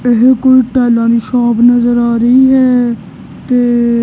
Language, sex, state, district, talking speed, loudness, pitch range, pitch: Punjabi, female, Punjab, Kapurthala, 165 wpm, -10 LUFS, 235-255 Hz, 240 Hz